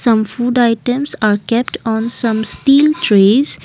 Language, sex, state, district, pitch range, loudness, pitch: English, female, Assam, Kamrup Metropolitan, 220-250 Hz, -13 LUFS, 235 Hz